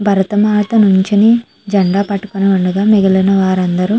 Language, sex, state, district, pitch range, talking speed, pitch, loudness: Telugu, female, Andhra Pradesh, Chittoor, 190-210 Hz, 135 wpm, 200 Hz, -12 LUFS